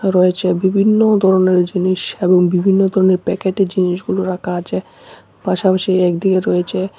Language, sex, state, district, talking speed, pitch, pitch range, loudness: Bengali, male, Tripura, West Tripura, 120 wpm, 185 Hz, 180-195 Hz, -15 LUFS